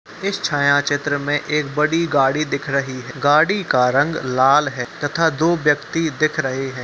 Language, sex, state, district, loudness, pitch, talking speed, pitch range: Hindi, male, Uttar Pradesh, Muzaffarnagar, -18 LUFS, 145 Hz, 185 wpm, 135-155 Hz